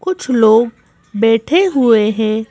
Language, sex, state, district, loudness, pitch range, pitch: Hindi, female, Madhya Pradesh, Bhopal, -13 LUFS, 220-265 Hz, 225 Hz